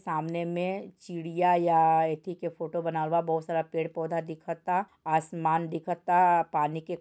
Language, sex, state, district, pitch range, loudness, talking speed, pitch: Bhojpuri, male, Bihar, Saran, 160-175 Hz, -28 LUFS, 165 wpm, 165 Hz